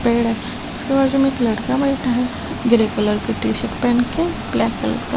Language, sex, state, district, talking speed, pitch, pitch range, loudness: Hindi, female, Delhi, New Delhi, 230 wpm, 245 Hz, 235-270 Hz, -19 LUFS